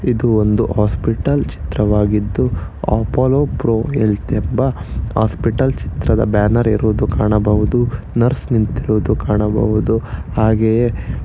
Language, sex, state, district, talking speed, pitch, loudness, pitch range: Kannada, male, Karnataka, Bangalore, 90 wpm, 110 Hz, -16 LUFS, 105-120 Hz